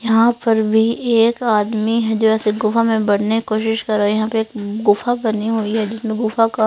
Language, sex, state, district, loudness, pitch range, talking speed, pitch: Hindi, female, Punjab, Fazilka, -17 LUFS, 215-225 Hz, 235 wpm, 220 Hz